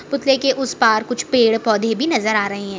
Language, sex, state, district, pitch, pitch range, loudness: Hindi, female, Maharashtra, Aurangabad, 230 Hz, 220-265 Hz, -17 LUFS